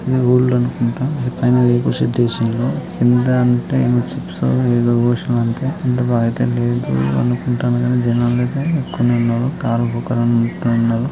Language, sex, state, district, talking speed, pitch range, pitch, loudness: Telugu, male, Andhra Pradesh, Srikakulam, 90 wpm, 115-125 Hz, 120 Hz, -17 LUFS